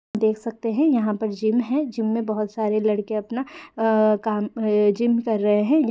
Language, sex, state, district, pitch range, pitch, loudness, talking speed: Hindi, female, Uttar Pradesh, Gorakhpur, 215-235 Hz, 220 Hz, -22 LUFS, 195 wpm